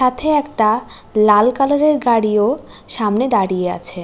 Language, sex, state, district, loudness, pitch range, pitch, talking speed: Bengali, female, West Bengal, North 24 Parganas, -16 LUFS, 210-260 Hz, 230 Hz, 135 wpm